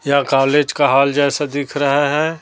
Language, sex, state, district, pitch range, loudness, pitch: Hindi, female, Chhattisgarh, Raipur, 140-145 Hz, -16 LUFS, 145 Hz